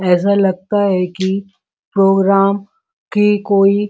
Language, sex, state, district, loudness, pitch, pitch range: Hindi, female, Uttar Pradesh, Muzaffarnagar, -15 LUFS, 195 Hz, 195-205 Hz